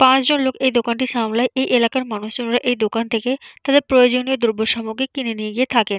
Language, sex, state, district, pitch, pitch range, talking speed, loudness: Bengali, female, West Bengal, Jalpaiguri, 245 Hz, 230-260 Hz, 190 wpm, -18 LUFS